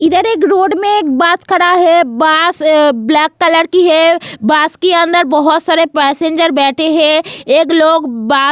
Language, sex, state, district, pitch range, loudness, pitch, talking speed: Hindi, female, Goa, North and South Goa, 305-345 Hz, -10 LUFS, 325 Hz, 170 wpm